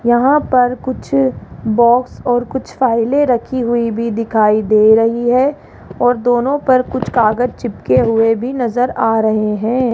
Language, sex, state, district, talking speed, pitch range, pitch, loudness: Hindi, female, Rajasthan, Jaipur, 155 wpm, 225-250 Hz, 240 Hz, -14 LUFS